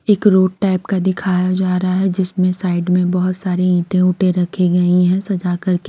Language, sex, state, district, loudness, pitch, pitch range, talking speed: Hindi, female, Himachal Pradesh, Shimla, -16 LUFS, 185 Hz, 180-190 Hz, 205 wpm